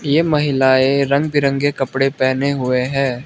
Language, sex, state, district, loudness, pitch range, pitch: Hindi, male, Arunachal Pradesh, Lower Dibang Valley, -16 LUFS, 130-140 Hz, 135 Hz